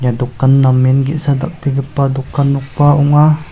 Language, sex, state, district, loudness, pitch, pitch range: Garo, male, Meghalaya, South Garo Hills, -13 LUFS, 140 Hz, 135-145 Hz